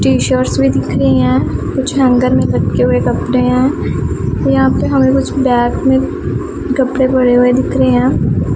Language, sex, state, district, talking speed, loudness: Hindi, female, Punjab, Pathankot, 175 wpm, -13 LUFS